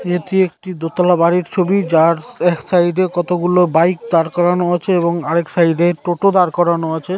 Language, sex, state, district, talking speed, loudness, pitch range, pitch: Bengali, male, West Bengal, North 24 Parganas, 185 wpm, -15 LUFS, 170-180 Hz, 175 Hz